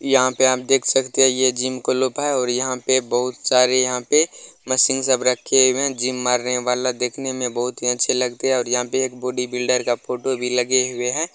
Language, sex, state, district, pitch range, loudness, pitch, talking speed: Maithili, male, Bihar, Begusarai, 125-130 Hz, -19 LUFS, 130 Hz, 230 wpm